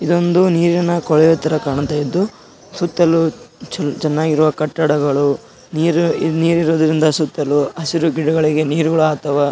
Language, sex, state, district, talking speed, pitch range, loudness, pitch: Kannada, male, Karnataka, Gulbarga, 100 wpm, 150-170 Hz, -16 LUFS, 155 Hz